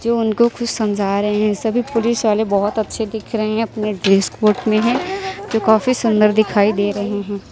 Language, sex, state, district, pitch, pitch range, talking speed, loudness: Hindi, female, Chhattisgarh, Raipur, 220 Hz, 205-230 Hz, 205 wpm, -17 LUFS